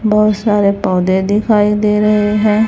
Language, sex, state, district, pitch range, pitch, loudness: Hindi, female, Chhattisgarh, Raipur, 200-210 Hz, 210 Hz, -13 LUFS